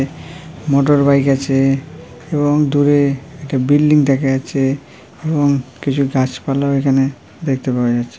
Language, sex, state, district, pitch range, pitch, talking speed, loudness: Bengali, female, West Bengal, Purulia, 135-145 Hz, 140 Hz, 115 wpm, -16 LUFS